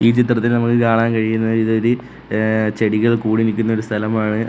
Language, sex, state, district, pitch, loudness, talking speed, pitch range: Malayalam, male, Kerala, Kollam, 110 Hz, -17 LUFS, 160 wpm, 110-115 Hz